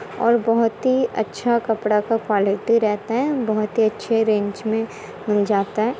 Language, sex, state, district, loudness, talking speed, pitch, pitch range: Hindi, female, Bihar, Muzaffarpur, -20 LUFS, 170 wpm, 225 Hz, 210-235 Hz